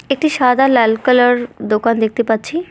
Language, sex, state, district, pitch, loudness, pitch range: Bengali, female, West Bengal, Cooch Behar, 245 Hz, -14 LUFS, 225-270 Hz